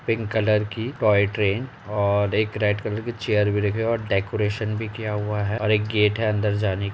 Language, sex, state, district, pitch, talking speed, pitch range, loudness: Hindi, male, Uttar Pradesh, Jalaun, 105 Hz, 240 wpm, 105-110 Hz, -23 LUFS